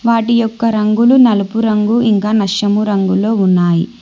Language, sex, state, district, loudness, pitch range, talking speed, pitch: Telugu, female, Telangana, Hyderabad, -13 LUFS, 205-230 Hz, 135 wpm, 215 Hz